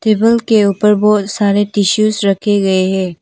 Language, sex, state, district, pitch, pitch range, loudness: Hindi, female, Arunachal Pradesh, Papum Pare, 205 Hz, 195-215 Hz, -13 LUFS